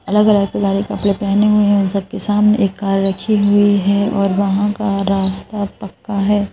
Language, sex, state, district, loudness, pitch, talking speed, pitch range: Hindi, female, Madhya Pradesh, Bhopal, -15 LUFS, 200 Hz, 185 wpm, 195-205 Hz